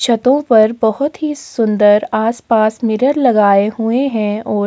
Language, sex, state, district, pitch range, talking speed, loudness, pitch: Hindi, female, Uttar Pradesh, Jalaun, 215-255 Hz, 155 wpm, -14 LUFS, 225 Hz